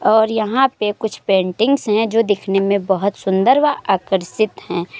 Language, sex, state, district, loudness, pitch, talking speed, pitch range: Hindi, female, Uttar Pradesh, Muzaffarnagar, -17 LUFS, 205 Hz, 170 wpm, 195-225 Hz